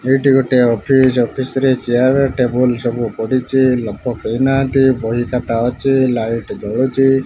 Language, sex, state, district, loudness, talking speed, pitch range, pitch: Odia, male, Odisha, Malkangiri, -15 LUFS, 125 wpm, 120-135 Hz, 125 Hz